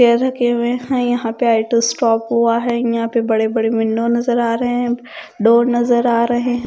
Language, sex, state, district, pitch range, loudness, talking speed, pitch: Hindi, female, Punjab, Kapurthala, 230-240 Hz, -16 LUFS, 205 wpm, 235 Hz